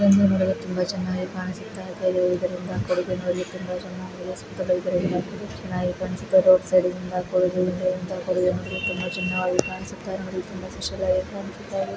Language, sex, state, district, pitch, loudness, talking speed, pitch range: Kannada, female, Karnataka, Belgaum, 185 Hz, -25 LUFS, 130 wpm, 180-190 Hz